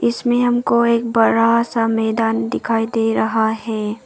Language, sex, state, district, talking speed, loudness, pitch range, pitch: Hindi, female, Arunachal Pradesh, Papum Pare, 150 wpm, -17 LUFS, 225-235 Hz, 225 Hz